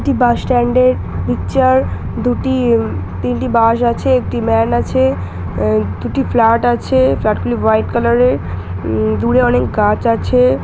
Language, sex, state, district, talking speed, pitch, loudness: Bengali, female, West Bengal, Jhargram, 125 wpm, 120 Hz, -14 LUFS